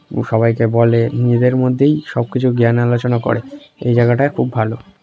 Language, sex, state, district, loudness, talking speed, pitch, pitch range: Bengali, male, West Bengal, North 24 Parganas, -15 LUFS, 180 wpm, 120 Hz, 115-130 Hz